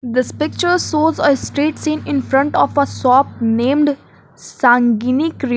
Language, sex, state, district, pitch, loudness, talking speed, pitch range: English, female, Jharkhand, Garhwa, 280 Hz, -16 LUFS, 150 wpm, 255-305 Hz